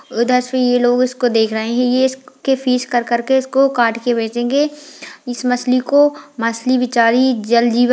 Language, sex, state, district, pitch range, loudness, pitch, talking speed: Hindi, female, Bihar, Jahanabad, 235-260 Hz, -16 LUFS, 250 Hz, 190 wpm